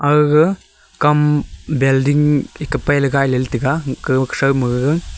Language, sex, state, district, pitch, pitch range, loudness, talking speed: Wancho, male, Arunachal Pradesh, Longding, 145 Hz, 135-150 Hz, -16 LUFS, 70 wpm